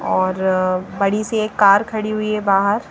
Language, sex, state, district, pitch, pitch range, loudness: Hindi, female, Punjab, Kapurthala, 200 Hz, 190-215 Hz, -17 LUFS